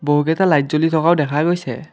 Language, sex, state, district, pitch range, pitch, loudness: Assamese, male, Assam, Kamrup Metropolitan, 145-170 Hz, 155 Hz, -17 LUFS